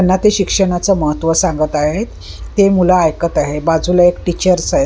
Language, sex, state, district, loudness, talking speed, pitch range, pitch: Marathi, female, Maharashtra, Mumbai Suburban, -14 LUFS, 175 wpm, 165-195 Hz, 180 Hz